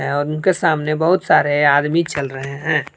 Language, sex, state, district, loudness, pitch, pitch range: Hindi, male, Jharkhand, Palamu, -17 LUFS, 150 Hz, 140-160 Hz